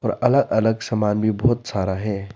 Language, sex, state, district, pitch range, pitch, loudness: Hindi, male, Arunachal Pradesh, Lower Dibang Valley, 105-120 Hz, 110 Hz, -20 LUFS